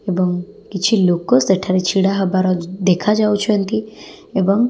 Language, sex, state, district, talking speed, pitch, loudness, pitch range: Odia, female, Odisha, Khordha, 115 wpm, 190 Hz, -17 LUFS, 185-210 Hz